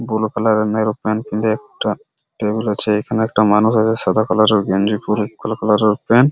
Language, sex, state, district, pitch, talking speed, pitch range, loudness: Bengali, male, West Bengal, Purulia, 110 Hz, 200 wpm, 105-110 Hz, -17 LUFS